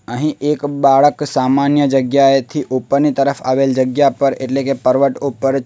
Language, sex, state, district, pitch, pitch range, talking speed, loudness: Gujarati, male, Gujarat, Valsad, 135 Hz, 130-140 Hz, 150 wpm, -15 LUFS